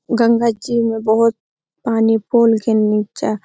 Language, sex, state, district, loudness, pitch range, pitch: Hindi, female, Uttar Pradesh, Hamirpur, -16 LUFS, 215-230 Hz, 225 Hz